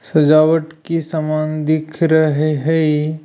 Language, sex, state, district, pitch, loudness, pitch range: Hindi, male, Rajasthan, Jaipur, 155 Hz, -16 LUFS, 155-160 Hz